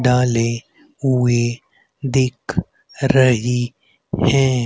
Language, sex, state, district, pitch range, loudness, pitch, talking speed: Hindi, male, Haryana, Rohtak, 120-130 Hz, -19 LUFS, 125 Hz, 65 wpm